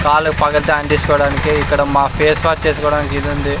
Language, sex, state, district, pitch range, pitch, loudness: Telugu, male, Andhra Pradesh, Sri Satya Sai, 145-150 Hz, 150 Hz, -14 LUFS